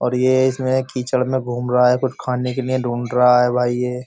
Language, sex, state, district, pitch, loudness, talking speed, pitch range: Hindi, male, Uttar Pradesh, Jyotiba Phule Nagar, 125 Hz, -18 LUFS, 265 wpm, 125-130 Hz